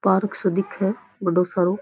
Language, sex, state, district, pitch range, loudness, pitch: Rajasthani, female, Rajasthan, Churu, 185-200 Hz, -23 LUFS, 195 Hz